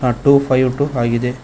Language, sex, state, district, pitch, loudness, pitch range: Kannada, male, Karnataka, Koppal, 130 Hz, -15 LUFS, 120-140 Hz